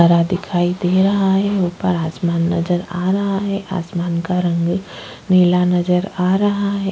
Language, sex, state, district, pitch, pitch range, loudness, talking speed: Hindi, female, Uttarakhand, Tehri Garhwal, 180 Hz, 175-195 Hz, -18 LUFS, 165 wpm